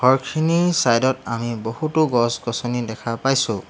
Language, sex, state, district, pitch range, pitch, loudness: Assamese, male, Assam, Hailakandi, 115-135 Hz, 120 Hz, -20 LUFS